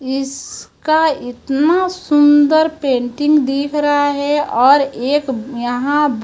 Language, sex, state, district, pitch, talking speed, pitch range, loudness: Hindi, female, Chhattisgarh, Raipur, 285 Hz, 105 wpm, 265-295 Hz, -15 LUFS